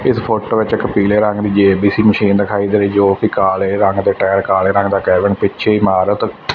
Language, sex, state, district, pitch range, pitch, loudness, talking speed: Punjabi, male, Punjab, Fazilka, 100-105 Hz, 100 Hz, -14 LUFS, 230 wpm